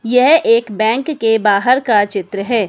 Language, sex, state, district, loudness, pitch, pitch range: Hindi, female, Himachal Pradesh, Shimla, -14 LUFS, 225 Hz, 205-250 Hz